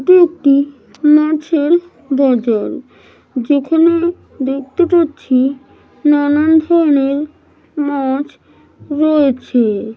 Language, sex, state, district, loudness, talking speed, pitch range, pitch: Bengali, female, West Bengal, Malda, -14 LUFS, 65 wpm, 270-320 Hz, 290 Hz